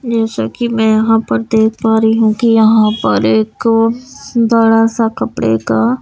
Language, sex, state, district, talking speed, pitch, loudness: Hindi, female, Bihar, Patna, 170 wpm, 225 Hz, -12 LUFS